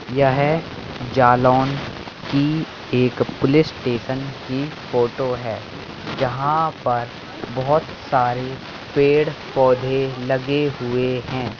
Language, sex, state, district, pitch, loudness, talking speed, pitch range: Hindi, male, Uttar Pradesh, Jalaun, 130 Hz, -20 LUFS, 90 wpm, 125-140 Hz